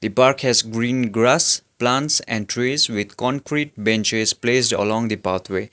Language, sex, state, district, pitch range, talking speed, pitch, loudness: English, male, Sikkim, Gangtok, 105-125 Hz, 155 wpm, 115 Hz, -19 LUFS